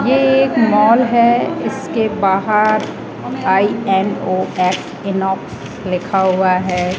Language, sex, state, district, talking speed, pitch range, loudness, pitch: Hindi, male, Rajasthan, Jaipur, 95 wpm, 185-225 Hz, -15 LUFS, 195 Hz